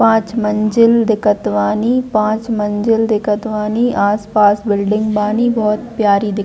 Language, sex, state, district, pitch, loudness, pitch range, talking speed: Hindi, female, Chhattisgarh, Bilaspur, 215 Hz, -15 LUFS, 205-225 Hz, 130 wpm